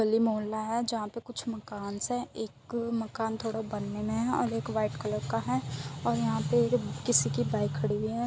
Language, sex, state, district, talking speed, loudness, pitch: Hindi, female, Uttar Pradesh, Muzaffarnagar, 210 wpm, -31 LUFS, 215 Hz